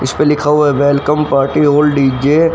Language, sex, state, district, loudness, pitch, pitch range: Hindi, male, Haryana, Rohtak, -12 LUFS, 145 Hz, 140-150 Hz